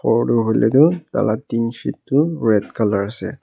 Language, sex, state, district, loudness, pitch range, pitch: Nagamese, male, Nagaland, Kohima, -18 LUFS, 110-140 Hz, 115 Hz